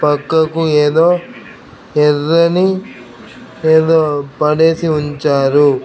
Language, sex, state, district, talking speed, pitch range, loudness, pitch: Telugu, male, Andhra Pradesh, Krishna, 60 wpm, 145-165 Hz, -13 LUFS, 155 Hz